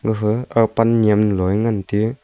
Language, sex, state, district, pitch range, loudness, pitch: Wancho, male, Arunachal Pradesh, Longding, 105-115 Hz, -18 LUFS, 110 Hz